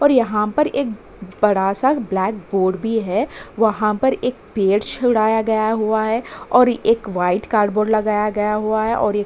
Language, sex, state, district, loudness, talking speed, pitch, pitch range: Hindi, female, Uttarakhand, Tehri Garhwal, -18 LUFS, 195 wpm, 215 Hz, 205-235 Hz